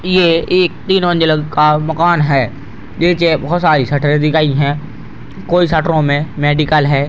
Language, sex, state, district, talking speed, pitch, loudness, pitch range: Hindi, male, Bihar, Purnia, 185 wpm, 155 Hz, -13 LUFS, 145-170 Hz